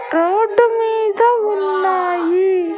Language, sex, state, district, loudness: Telugu, female, Andhra Pradesh, Annamaya, -16 LUFS